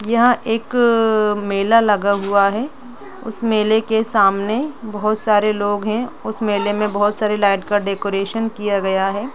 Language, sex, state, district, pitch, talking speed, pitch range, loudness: Hindi, female, Jharkhand, Jamtara, 215 Hz, 160 wpm, 205-225 Hz, -17 LUFS